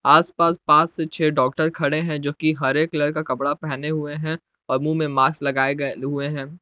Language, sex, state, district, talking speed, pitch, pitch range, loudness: Hindi, male, Jharkhand, Palamu, 210 wpm, 150 Hz, 140-155 Hz, -21 LUFS